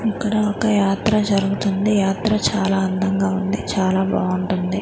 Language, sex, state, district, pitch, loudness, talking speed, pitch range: Telugu, female, Andhra Pradesh, Manyam, 195 Hz, -19 LUFS, 125 wpm, 190-210 Hz